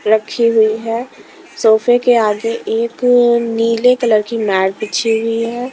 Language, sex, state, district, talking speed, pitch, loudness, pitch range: Hindi, female, Himachal Pradesh, Shimla, 145 wpm, 230 Hz, -14 LUFS, 220-245 Hz